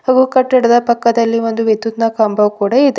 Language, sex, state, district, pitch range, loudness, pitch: Kannada, female, Karnataka, Bidar, 225-255 Hz, -13 LUFS, 230 Hz